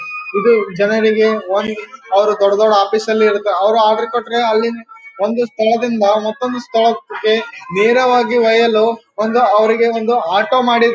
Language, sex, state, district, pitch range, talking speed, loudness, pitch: Kannada, male, Karnataka, Gulbarga, 215-240 Hz, 125 wpm, -14 LUFS, 225 Hz